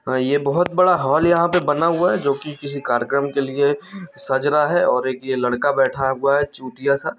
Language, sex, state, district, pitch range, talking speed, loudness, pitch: Hindi, male, Chhattisgarh, Bilaspur, 135-165 Hz, 190 wpm, -19 LUFS, 140 Hz